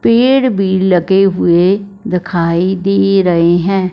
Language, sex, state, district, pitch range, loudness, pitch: Hindi, female, Punjab, Fazilka, 180-195 Hz, -12 LUFS, 190 Hz